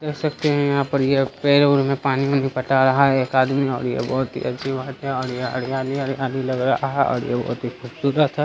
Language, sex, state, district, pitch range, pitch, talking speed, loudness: Hindi, male, Bihar, Araria, 130-140 Hz, 135 Hz, 240 wpm, -21 LUFS